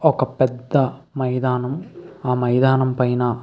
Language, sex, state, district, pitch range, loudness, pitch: Telugu, male, Andhra Pradesh, Visakhapatnam, 125-140 Hz, -20 LUFS, 130 Hz